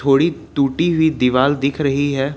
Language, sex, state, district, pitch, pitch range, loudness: Hindi, male, Jharkhand, Ranchi, 140 Hz, 135-155 Hz, -17 LUFS